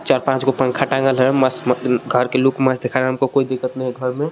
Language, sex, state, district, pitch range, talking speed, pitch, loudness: Hindi, male, Jharkhand, Garhwa, 125-135 Hz, 290 wpm, 130 Hz, -18 LUFS